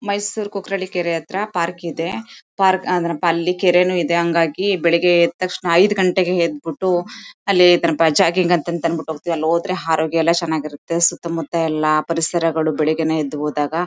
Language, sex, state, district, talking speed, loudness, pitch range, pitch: Kannada, female, Karnataka, Mysore, 155 wpm, -18 LUFS, 165-185 Hz, 170 Hz